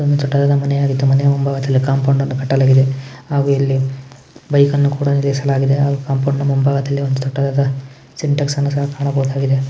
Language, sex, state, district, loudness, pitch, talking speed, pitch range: Kannada, male, Karnataka, Gulbarga, -16 LUFS, 140 Hz, 150 wpm, 135-140 Hz